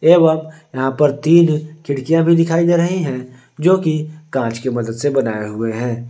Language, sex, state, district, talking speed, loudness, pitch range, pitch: Hindi, male, Jharkhand, Ranchi, 185 wpm, -16 LUFS, 125-165 Hz, 150 Hz